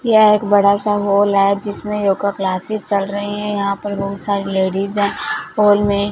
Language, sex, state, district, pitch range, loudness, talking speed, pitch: Hindi, female, Punjab, Fazilka, 200-205 Hz, -16 LUFS, 195 wpm, 200 Hz